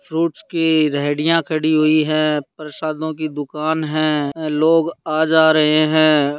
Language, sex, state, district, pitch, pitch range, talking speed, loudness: Hindi, female, Bihar, Darbhanga, 155 Hz, 150-160 Hz, 140 wpm, -17 LUFS